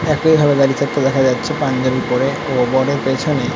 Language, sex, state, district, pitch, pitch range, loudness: Bengali, male, West Bengal, North 24 Parganas, 135 Hz, 130-145 Hz, -16 LUFS